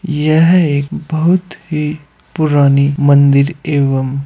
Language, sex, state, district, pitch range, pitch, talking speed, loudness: Hindi, male, Uttar Pradesh, Hamirpur, 140-160 Hz, 150 Hz, 115 wpm, -13 LUFS